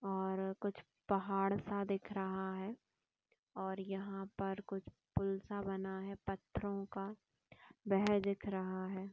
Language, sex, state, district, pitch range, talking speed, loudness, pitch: Hindi, female, Chhattisgarh, Kabirdham, 190-200 Hz, 140 wpm, -41 LUFS, 195 Hz